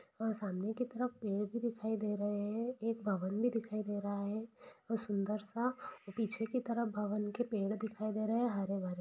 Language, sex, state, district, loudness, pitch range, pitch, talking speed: Hindi, female, Bihar, Saran, -38 LUFS, 205-230 Hz, 215 Hz, 200 wpm